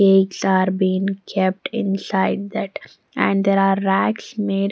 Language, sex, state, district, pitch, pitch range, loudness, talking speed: English, female, Punjab, Pathankot, 195 Hz, 190-195 Hz, -20 LUFS, 140 wpm